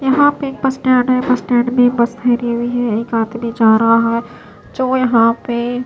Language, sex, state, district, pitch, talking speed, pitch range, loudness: Hindi, female, Maharashtra, Gondia, 245 Hz, 235 wpm, 235-255 Hz, -15 LUFS